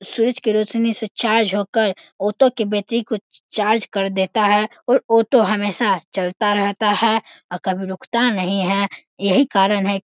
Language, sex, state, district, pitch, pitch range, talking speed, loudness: Hindi, male, Bihar, Sitamarhi, 215 Hz, 200-230 Hz, 175 wpm, -19 LUFS